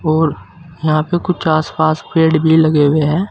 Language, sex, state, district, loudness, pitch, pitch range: Hindi, male, Uttar Pradesh, Saharanpur, -14 LUFS, 160 Hz, 155-160 Hz